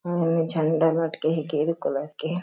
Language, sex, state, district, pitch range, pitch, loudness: Chhattisgarhi, female, Chhattisgarh, Jashpur, 155-165 Hz, 160 Hz, -24 LUFS